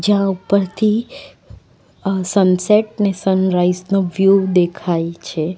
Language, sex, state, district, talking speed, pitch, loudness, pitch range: Gujarati, female, Gujarat, Valsad, 105 wpm, 190 Hz, -17 LUFS, 180-200 Hz